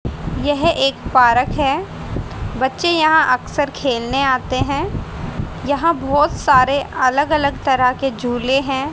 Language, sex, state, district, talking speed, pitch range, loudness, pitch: Hindi, female, Haryana, Rohtak, 125 wpm, 255-290 Hz, -17 LUFS, 270 Hz